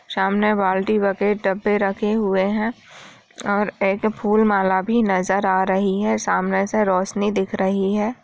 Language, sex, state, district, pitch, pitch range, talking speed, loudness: Hindi, female, Bihar, Jamui, 200 Hz, 195-210 Hz, 160 wpm, -20 LUFS